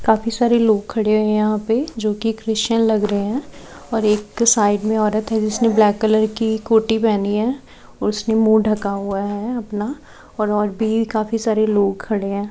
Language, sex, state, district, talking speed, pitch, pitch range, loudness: Hindi, female, Haryana, Charkhi Dadri, 190 wpm, 220 Hz, 210-225 Hz, -18 LUFS